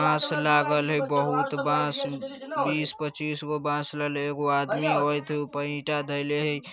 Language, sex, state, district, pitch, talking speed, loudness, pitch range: Bajjika, male, Bihar, Vaishali, 150 Hz, 180 wpm, -26 LUFS, 145-150 Hz